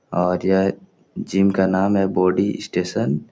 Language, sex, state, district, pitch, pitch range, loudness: Hindi, male, Uttar Pradesh, Etah, 95 Hz, 90-95 Hz, -20 LUFS